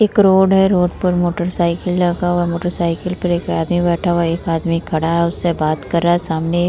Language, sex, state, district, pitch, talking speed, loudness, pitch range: Hindi, female, Bihar, Vaishali, 175 Hz, 260 wpm, -16 LUFS, 170-180 Hz